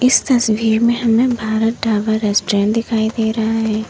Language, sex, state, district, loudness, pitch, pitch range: Hindi, female, Uttar Pradesh, Lalitpur, -16 LUFS, 220 Hz, 220-230 Hz